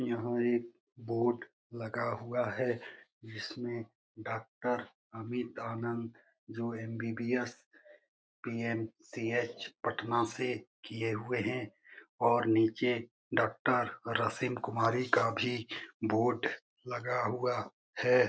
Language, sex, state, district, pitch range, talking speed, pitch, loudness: Hindi, male, Bihar, Jamui, 115-125 Hz, 95 wpm, 120 Hz, -34 LUFS